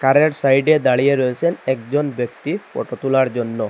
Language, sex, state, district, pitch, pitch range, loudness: Bengali, male, Assam, Hailakandi, 135 Hz, 125-145 Hz, -18 LUFS